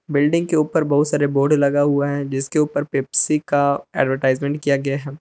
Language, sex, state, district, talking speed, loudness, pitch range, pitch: Hindi, male, Jharkhand, Palamu, 195 wpm, -19 LUFS, 140-150 Hz, 145 Hz